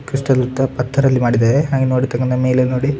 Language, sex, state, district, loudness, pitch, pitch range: Kannada, male, Karnataka, Dakshina Kannada, -16 LUFS, 130 Hz, 125-135 Hz